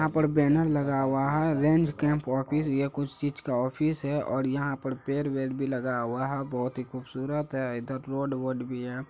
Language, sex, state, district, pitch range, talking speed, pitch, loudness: Hindi, male, Bihar, Araria, 130-145 Hz, 220 wpm, 135 Hz, -29 LUFS